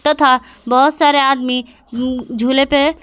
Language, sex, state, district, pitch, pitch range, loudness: Hindi, female, Jharkhand, Garhwa, 265 Hz, 255-285 Hz, -14 LUFS